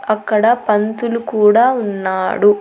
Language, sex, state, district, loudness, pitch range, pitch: Telugu, female, Andhra Pradesh, Annamaya, -15 LUFS, 205-230 Hz, 215 Hz